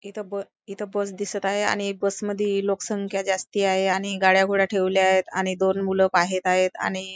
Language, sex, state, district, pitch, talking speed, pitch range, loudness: Marathi, female, Maharashtra, Chandrapur, 195 Hz, 185 wpm, 190-200 Hz, -23 LUFS